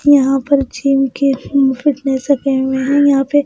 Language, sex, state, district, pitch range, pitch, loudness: Hindi, female, Bihar, Patna, 265-285 Hz, 275 Hz, -14 LUFS